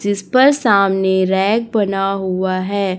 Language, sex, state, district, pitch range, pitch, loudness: Hindi, female, Chhattisgarh, Raipur, 190-205 Hz, 195 Hz, -15 LUFS